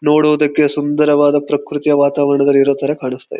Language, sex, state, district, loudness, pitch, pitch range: Kannada, male, Karnataka, Mysore, -14 LUFS, 145 Hz, 140-150 Hz